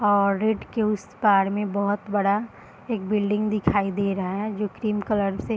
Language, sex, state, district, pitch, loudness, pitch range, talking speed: Hindi, female, Bihar, Madhepura, 205 Hz, -24 LUFS, 200-215 Hz, 205 wpm